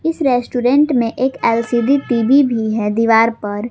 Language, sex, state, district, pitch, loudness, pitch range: Hindi, female, Jharkhand, Garhwa, 240 Hz, -15 LUFS, 225-265 Hz